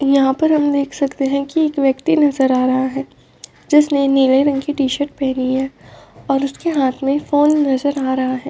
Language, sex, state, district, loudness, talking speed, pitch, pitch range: Hindi, female, Uttar Pradesh, Varanasi, -16 LUFS, 205 wpm, 275 Hz, 265-290 Hz